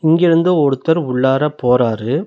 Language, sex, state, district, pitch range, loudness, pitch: Tamil, male, Tamil Nadu, Nilgiris, 125-165 Hz, -15 LUFS, 145 Hz